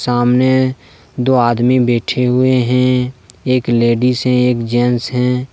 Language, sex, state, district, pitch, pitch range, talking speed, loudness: Hindi, male, Jharkhand, Deoghar, 125 Hz, 120-125 Hz, 130 wpm, -14 LUFS